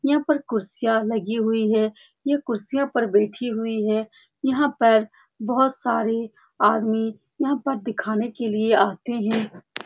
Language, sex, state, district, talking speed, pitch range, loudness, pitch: Hindi, female, Bihar, Saran, 145 wpm, 220-265 Hz, -23 LUFS, 225 Hz